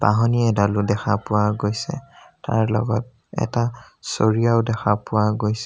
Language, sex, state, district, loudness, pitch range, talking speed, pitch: Assamese, male, Assam, Sonitpur, -21 LUFS, 105-120 Hz, 125 wpm, 110 Hz